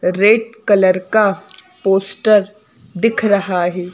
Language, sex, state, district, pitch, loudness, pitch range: Hindi, female, Madhya Pradesh, Bhopal, 205 Hz, -15 LUFS, 190-220 Hz